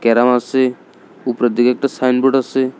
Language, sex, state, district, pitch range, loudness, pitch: Bengali, male, Tripura, South Tripura, 120-130 Hz, -16 LUFS, 125 Hz